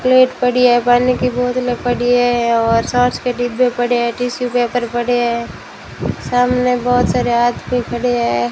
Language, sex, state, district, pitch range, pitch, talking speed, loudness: Hindi, female, Rajasthan, Bikaner, 240-250 Hz, 245 Hz, 170 wpm, -15 LUFS